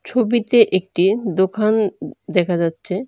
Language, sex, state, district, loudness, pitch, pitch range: Bengali, female, Tripura, Dhalai, -18 LUFS, 200 Hz, 185-220 Hz